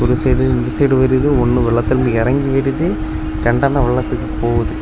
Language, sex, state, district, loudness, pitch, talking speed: Tamil, male, Tamil Nadu, Kanyakumari, -16 LUFS, 120 Hz, 150 wpm